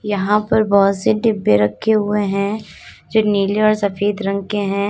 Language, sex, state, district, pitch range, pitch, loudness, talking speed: Hindi, female, Uttar Pradesh, Lalitpur, 200-210 Hz, 205 Hz, -17 LUFS, 185 wpm